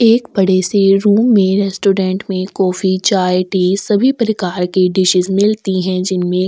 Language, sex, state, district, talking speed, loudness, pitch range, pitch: Hindi, female, Chhattisgarh, Sukma, 165 wpm, -14 LUFS, 185-205 Hz, 190 Hz